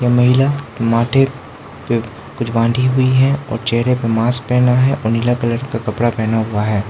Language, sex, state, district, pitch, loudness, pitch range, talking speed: Hindi, male, Arunachal Pradesh, Lower Dibang Valley, 120 Hz, -16 LUFS, 115-130 Hz, 190 wpm